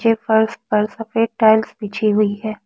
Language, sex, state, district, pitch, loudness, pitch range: Hindi, female, Assam, Kamrup Metropolitan, 220 Hz, -18 LUFS, 210-225 Hz